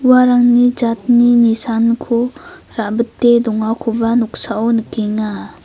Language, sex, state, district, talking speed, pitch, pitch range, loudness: Garo, female, Meghalaya, South Garo Hills, 75 wpm, 235 Hz, 225-240 Hz, -14 LUFS